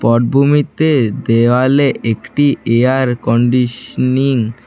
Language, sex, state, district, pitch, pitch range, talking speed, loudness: Bengali, male, West Bengal, Alipurduar, 125 Hz, 115-140 Hz, 75 wpm, -13 LUFS